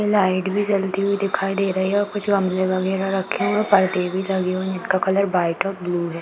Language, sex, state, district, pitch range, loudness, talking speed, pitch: Hindi, female, Uttar Pradesh, Varanasi, 185-200 Hz, -21 LUFS, 250 wpm, 190 Hz